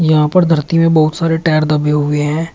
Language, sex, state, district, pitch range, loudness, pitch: Hindi, male, Uttar Pradesh, Shamli, 150-165 Hz, -13 LUFS, 155 Hz